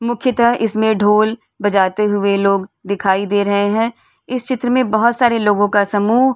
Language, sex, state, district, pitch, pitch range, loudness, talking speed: Hindi, female, Uttar Pradesh, Varanasi, 215 Hz, 200-235 Hz, -15 LUFS, 180 wpm